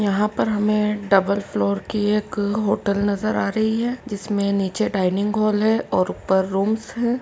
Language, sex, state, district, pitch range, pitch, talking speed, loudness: Hindi, female, Uttar Pradesh, Etah, 200-215 Hz, 210 Hz, 175 wpm, -21 LUFS